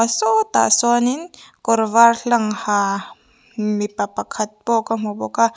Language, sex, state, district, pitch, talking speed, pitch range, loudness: Mizo, female, Mizoram, Aizawl, 225 Hz, 140 wpm, 215-235 Hz, -18 LUFS